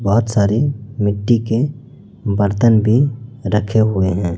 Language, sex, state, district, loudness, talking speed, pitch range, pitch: Hindi, male, Chhattisgarh, Raipur, -16 LUFS, 125 wpm, 100-120 Hz, 110 Hz